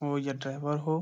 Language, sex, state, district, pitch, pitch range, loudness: Hindi, male, Bihar, Saharsa, 145 Hz, 140-150 Hz, -33 LUFS